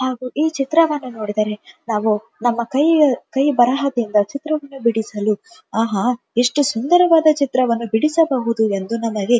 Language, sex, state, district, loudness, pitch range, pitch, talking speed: Kannada, female, Karnataka, Dharwad, -18 LUFS, 220-285 Hz, 245 Hz, 115 wpm